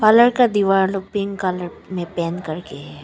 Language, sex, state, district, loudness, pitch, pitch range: Hindi, female, Arunachal Pradesh, Papum Pare, -20 LUFS, 190 Hz, 170-200 Hz